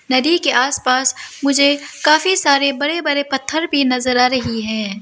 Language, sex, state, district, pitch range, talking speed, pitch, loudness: Hindi, female, Arunachal Pradesh, Lower Dibang Valley, 255-300 Hz, 165 wpm, 280 Hz, -16 LUFS